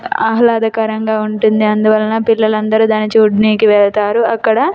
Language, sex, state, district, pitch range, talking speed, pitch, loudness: Telugu, female, Telangana, Nalgonda, 215-225 Hz, 100 wpm, 220 Hz, -12 LUFS